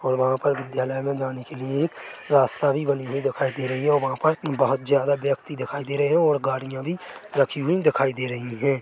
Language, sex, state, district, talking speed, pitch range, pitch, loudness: Hindi, male, Chhattisgarh, Bilaspur, 250 wpm, 130-145 Hz, 140 Hz, -24 LUFS